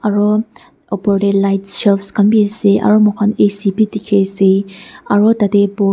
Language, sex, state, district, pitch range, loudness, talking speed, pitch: Nagamese, female, Nagaland, Dimapur, 200-210 Hz, -13 LUFS, 140 wpm, 205 Hz